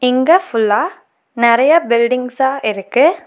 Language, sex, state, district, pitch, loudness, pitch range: Tamil, female, Tamil Nadu, Nilgiris, 250 Hz, -14 LUFS, 235-275 Hz